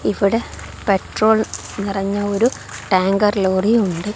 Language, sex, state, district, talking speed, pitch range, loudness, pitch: Malayalam, female, Kerala, Kozhikode, 100 wpm, 195-215 Hz, -18 LUFS, 200 Hz